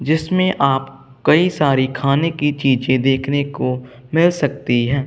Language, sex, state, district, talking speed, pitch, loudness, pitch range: Hindi, male, Punjab, Kapurthala, 140 wpm, 140 Hz, -17 LUFS, 130-155 Hz